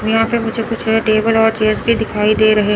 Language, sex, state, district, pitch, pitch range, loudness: Hindi, male, Chandigarh, Chandigarh, 220 Hz, 215-225 Hz, -15 LUFS